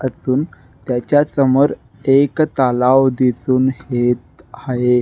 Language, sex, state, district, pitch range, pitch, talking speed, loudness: Marathi, male, Maharashtra, Nagpur, 125-135 Hz, 130 Hz, 95 wpm, -16 LUFS